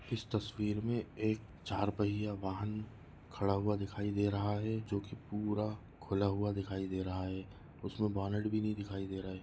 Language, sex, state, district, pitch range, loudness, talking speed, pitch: Hindi, male, Maharashtra, Nagpur, 100-105 Hz, -37 LUFS, 190 wpm, 105 Hz